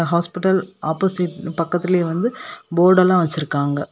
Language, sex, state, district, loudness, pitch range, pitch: Tamil, female, Tamil Nadu, Kanyakumari, -19 LUFS, 165-185 Hz, 175 Hz